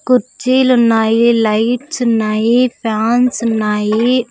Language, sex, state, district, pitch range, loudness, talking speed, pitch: Telugu, female, Andhra Pradesh, Sri Satya Sai, 220-250 Hz, -13 LUFS, 85 wpm, 235 Hz